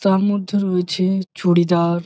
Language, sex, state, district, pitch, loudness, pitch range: Bengali, male, West Bengal, Jalpaiguri, 185 Hz, -18 LUFS, 175-195 Hz